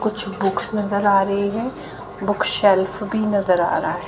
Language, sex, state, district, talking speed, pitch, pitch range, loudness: Hindi, female, Haryana, Jhajjar, 175 wpm, 200 Hz, 195-215 Hz, -20 LUFS